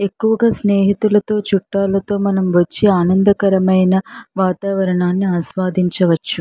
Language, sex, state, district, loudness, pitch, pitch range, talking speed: Telugu, female, Andhra Pradesh, Chittoor, -15 LUFS, 195 Hz, 185-205 Hz, 75 wpm